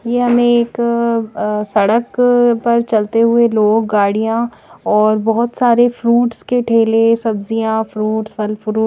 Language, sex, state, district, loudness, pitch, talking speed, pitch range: Hindi, female, Chandigarh, Chandigarh, -14 LUFS, 230 Hz, 130 wpm, 215-235 Hz